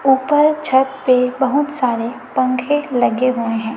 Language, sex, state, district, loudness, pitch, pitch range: Hindi, female, Chhattisgarh, Raipur, -16 LUFS, 260 Hz, 250-285 Hz